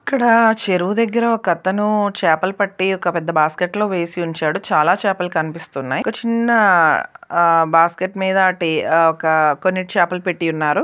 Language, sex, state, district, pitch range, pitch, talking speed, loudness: Telugu, female, Andhra Pradesh, Visakhapatnam, 165-205 Hz, 180 Hz, 145 wpm, -17 LUFS